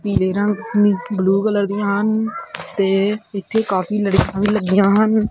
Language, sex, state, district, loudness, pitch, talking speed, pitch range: Punjabi, male, Punjab, Kapurthala, -18 LUFS, 205 Hz, 160 wpm, 195-215 Hz